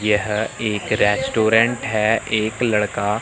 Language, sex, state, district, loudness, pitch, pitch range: Hindi, male, Chandigarh, Chandigarh, -19 LUFS, 110 Hz, 105-110 Hz